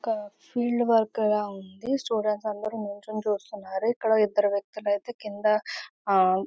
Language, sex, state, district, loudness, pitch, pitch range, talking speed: Telugu, female, Andhra Pradesh, Visakhapatnam, -27 LUFS, 215 Hz, 205-220 Hz, 140 wpm